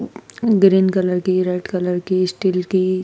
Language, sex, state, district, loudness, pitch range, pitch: Hindi, female, Madhya Pradesh, Dhar, -18 LUFS, 180-190 Hz, 185 Hz